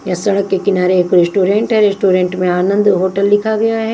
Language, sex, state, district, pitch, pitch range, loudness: Hindi, female, Bihar, Kaimur, 195 Hz, 185-205 Hz, -13 LUFS